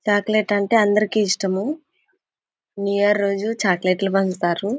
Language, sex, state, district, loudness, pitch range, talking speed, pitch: Telugu, female, Andhra Pradesh, Anantapur, -20 LUFS, 195-215 Hz, 115 wpm, 205 Hz